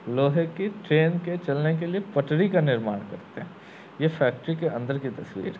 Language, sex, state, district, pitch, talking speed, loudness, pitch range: Hindi, male, Uttar Pradesh, Varanasi, 160 Hz, 205 wpm, -26 LUFS, 140-175 Hz